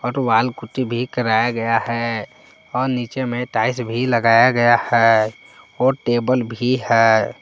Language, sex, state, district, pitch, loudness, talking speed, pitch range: Hindi, male, Jharkhand, Palamu, 120 Hz, -18 LUFS, 145 wpm, 115-125 Hz